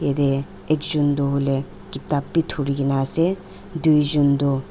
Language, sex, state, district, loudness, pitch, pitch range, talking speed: Nagamese, female, Nagaland, Dimapur, -19 LUFS, 145 Hz, 140-155 Hz, 125 wpm